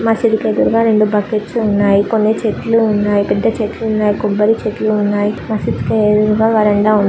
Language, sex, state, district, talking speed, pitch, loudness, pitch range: Telugu, female, Andhra Pradesh, Chittoor, 170 wpm, 215 Hz, -14 LUFS, 210-220 Hz